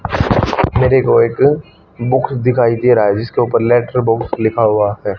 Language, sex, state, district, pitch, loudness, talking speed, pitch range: Hindi, female, Haryana, Charkhi Dadri, 120 Hz, -14 LUFS, 175 wpm, 110-125 Hz